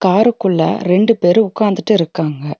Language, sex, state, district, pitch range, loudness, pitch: Tamil, female, Tamil Nadu, Nilgiris, 175-215 Hz, -14 LUFS, 190 Hz